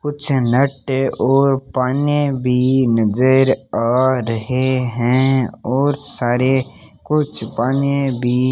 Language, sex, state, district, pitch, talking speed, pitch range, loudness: Hindi, male, Rajasthan, Bikaner, 130 Hz, 105 wpm, 125-135 Hz, -17 LUFS